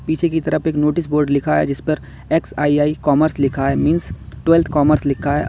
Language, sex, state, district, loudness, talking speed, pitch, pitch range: Hindi, male, Uttar Pradesh, Lalitpur, -17 LUFS, 210 wpm, 150 Hz, 140-160 Hz